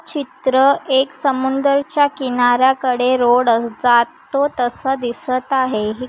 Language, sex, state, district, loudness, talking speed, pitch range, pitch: Marathi, female, Maharashtra, Chandrapur, -17 LUFS, 110 wpm, 245-275 Hz, 260 Hz